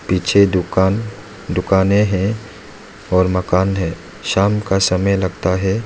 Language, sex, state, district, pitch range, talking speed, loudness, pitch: Hindi, male, Arunachal Pradesh, Lower Dibang Valley, 95-105 Hz, 125 wpm, -17 LUFS, 95 Hz